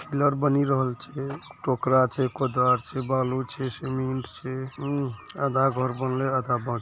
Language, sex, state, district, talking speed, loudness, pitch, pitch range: Hindi, male, Bihar, Araria, 165 wpm, -26 LUFS, 130 Hz, 130-135 Hz